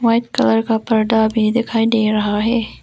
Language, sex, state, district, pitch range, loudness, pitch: Hindi, female, Arunachal Pradesh, Lower Dibang Valley, 220-230 Hz, -16 LUFS, 225 Hz